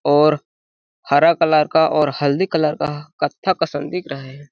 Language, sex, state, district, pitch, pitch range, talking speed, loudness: Hindi, male, Chhattisgarh, Balrampur, 150 Hz, 145-160 Hz, 185 wpm, -18 LUFS